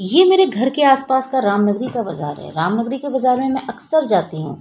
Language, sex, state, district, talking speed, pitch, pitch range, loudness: Hindi, female, Bihar, Patna, 235 wpm, 255 Hz, 205-270 Hz, -17 LUFS